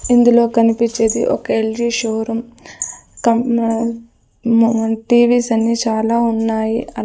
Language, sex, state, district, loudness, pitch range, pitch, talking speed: Telugu, female, Andhra Pradesh, Sri Satya Sai, -16 LUFS, 225-235 Hz, 230 Hz, 100 wpm